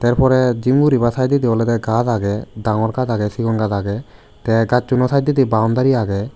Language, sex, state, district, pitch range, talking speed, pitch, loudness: Chakma, male, Tripura, West Tripura, 110-130 Hz, 170 wpm, 115 Hz, -17 LUFS